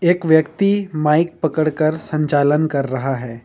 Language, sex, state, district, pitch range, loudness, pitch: Hindi, male, Jharkhand, Ranchi, 145-160 Hz, -18 LUFS, 155 Hz